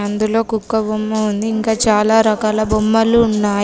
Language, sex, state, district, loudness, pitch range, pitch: Telugu, female, Telangana, Komaram Bheem, -15 LUFS, 215-220 Hz, 215 Hz